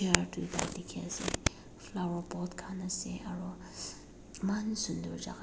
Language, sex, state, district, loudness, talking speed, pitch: Nagamese, female, Nagaland, Dimapur, -36 LUFS, 130 wpm, 180 Hz